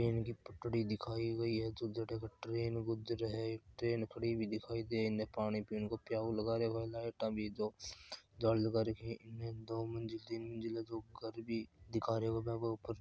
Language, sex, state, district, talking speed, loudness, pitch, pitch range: Marwari, male, Rajasthan, Churu, 195 wpm, -40 LUFS, 115 Hz, 110-115 Hz